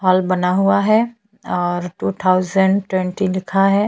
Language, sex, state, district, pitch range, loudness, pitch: Hindi, female, Chhattisgarh, Bastar, 185-200 Hz, -17 LUFS, 190 Hz